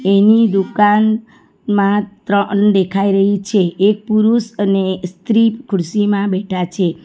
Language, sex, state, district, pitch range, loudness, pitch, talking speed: Gujarati, female, Gujarat, Valsad, 195-215 Hz, -15 LUFS, 200 Hz, 125 wpm